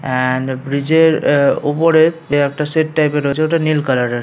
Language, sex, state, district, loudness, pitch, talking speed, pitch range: Bengali, male, West Bengal, Paschim Medinipur, -15 LUFS, 150 Hz, 200 wpm, 135-160 Hz